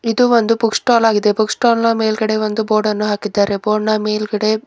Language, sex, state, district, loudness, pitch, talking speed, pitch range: Kannada, female, Karnataka, Bidar, -15 LUFS, 215 Hz, 195 wpm, 215-225 Hz